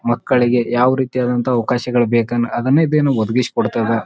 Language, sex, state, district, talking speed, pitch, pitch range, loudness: Kannada, male, Karnataka, Bijapur, 135 wpm, 120 Hz, 120-125 Hz, -16 LUFS